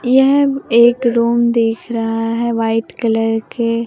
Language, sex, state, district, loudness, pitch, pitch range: Hindi, male, Bihar, Katihar, -15 LUFS, 235 Hz, 225-240 Hz